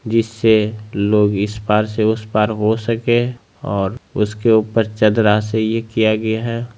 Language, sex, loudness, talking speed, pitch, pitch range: Maithili, male, -17 LUFS, 160 wpm, 110 Hz, 105-115 Hz